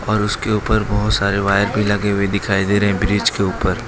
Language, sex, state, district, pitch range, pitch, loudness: Hindi, male, Gujarat, Valsad, 100-105 Hz, 100 Hz, -17 LUFS